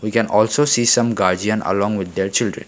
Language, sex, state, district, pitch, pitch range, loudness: English, male, Assam, Kamrup Metropolitan, 105 Hz, 100-115 Hz, -17 LUFS